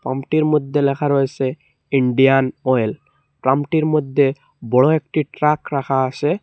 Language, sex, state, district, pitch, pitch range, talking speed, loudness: Bengali, male, Assam, Hailakandi, 140 Hz, 130-150 Hz, 120 wpm, -18 LUFS